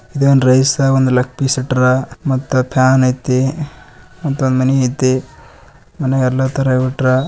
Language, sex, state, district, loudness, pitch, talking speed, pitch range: Kannada, male, Karnataka, Bijapur, -15 LUFS, 130 Hz, 130 wpm, 130-135 Hz